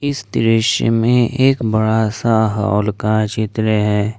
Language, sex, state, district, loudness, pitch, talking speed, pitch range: Hindi, male, Jharkhand, Ranchi, -16 LUFS, 110 Hz, 145 wpm, 110-115 Hz